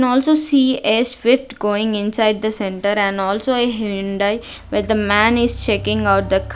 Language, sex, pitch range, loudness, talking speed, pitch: English, female, 200-240 Hz, -17 LUFS, 185 wpm, 215 Hz